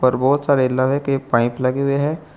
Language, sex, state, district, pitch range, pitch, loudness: Hindi, male, Uttar Pradesh, Saharanpur, 130-140 Hz, 135 Hz, -18 LUFS